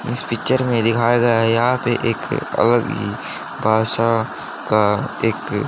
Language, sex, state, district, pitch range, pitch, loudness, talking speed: Hindi, male, Haryana, Rohtak, 110-120 Hz, 115 Hz, -18 LUFS, 150 wpm